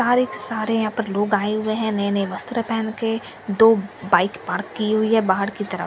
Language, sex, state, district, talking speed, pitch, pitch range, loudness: Hindi, female, Bihar, Katihar, 235 wpm, 215 Hz, 200-225 Hz, -21 LUFS